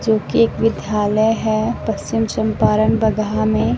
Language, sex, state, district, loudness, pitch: Hindi, female, Bihar, West Champaran, -17 LUFS, 210 Hz